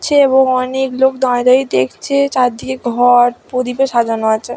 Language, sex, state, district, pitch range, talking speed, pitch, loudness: Bengali, female, West Bengal, Dakshin Dinajpur, 245-265 Hz, 145 wpm, 255 Hz, -14 LUFS